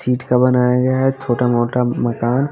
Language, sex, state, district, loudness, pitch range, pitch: Hindi, female, Haryana, Charkhi Dadri, -16 LUFS, 120-130 Hz, 125 Hz